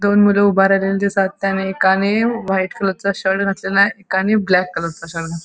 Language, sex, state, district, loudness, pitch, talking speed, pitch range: Marathi, female, Goa, North and South Goa, -17 LUFS, 195 Hz, 165 wpm, 190-200 Hz